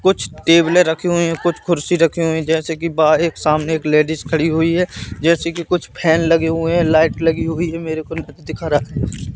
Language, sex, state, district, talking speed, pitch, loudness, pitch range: Hindi, male, Madhya Pradesh, Katni, 225 wpm, 165 Hz, -17 LUFS, 160-170 Hz